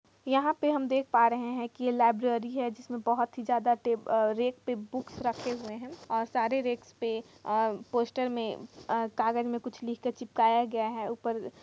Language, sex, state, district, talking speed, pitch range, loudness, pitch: Hindi, female, Chhattisgarh, Kabirdham, 205 wpm, 230-245 Hz, -30 LUFS, 240 Hz